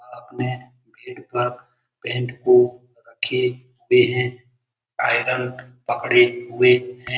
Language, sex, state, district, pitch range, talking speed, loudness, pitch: Hindi, male, Bihar, Lakhisarai, 120-125 Hz, 100 wpm, -20 LUFS, 125 Hz